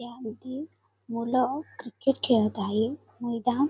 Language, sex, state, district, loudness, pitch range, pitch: Marathi, female, Maharashtra, Sindhudurg, -28 LUFS, 230-265 Hz, 240 Hz